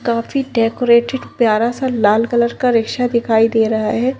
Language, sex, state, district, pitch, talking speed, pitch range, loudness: Hindi, female, Bihar, Kishanganj, 235 Hz, 170 wpm, 225-245 Hz, -16 LUFS